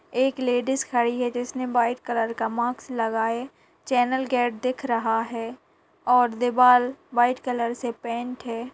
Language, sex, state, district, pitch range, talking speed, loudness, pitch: Hindi, female, Bihar, Kishanganj, 235-255 Hz, 150 wpm, -24 LUFS, 245 Hz